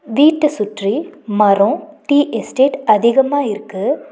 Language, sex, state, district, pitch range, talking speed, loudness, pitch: Tamil, female, Tamil Nadu, Nilgiris, 210-290 Hz, 100 wpm, -15 LUFS, 260 Hz